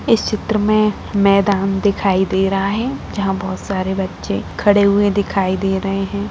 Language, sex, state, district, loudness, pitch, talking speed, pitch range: Hindi, female, Bihar, Saran, -17 LUFS, 200 Hz, 170 wpm, 195-205 Hz